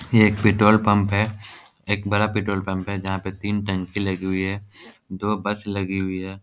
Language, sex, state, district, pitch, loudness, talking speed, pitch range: Hindi, male, Bihar, Jahanabad, 100 Hz, -22 LUFS, 205 wpm, 95-105 Hz